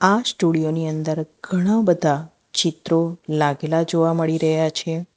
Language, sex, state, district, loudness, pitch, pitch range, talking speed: Gujarati, female, Gujarat, Valsad, -21 LUFS, 165 Hz, 155-170 Hz, 140 wpm